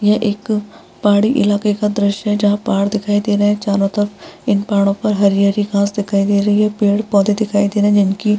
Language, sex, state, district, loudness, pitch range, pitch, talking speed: Hindi, female, Bihar, Vaishali, -15 LUFS, 200-210 Hz, 205 Hz, 220 wpm